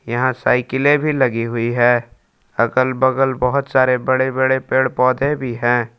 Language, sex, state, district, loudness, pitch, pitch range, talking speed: Hindi, male, Jharkhand, Palamu, -17 LUFS, 130 Hz, 120-130 Hz, 160 wpm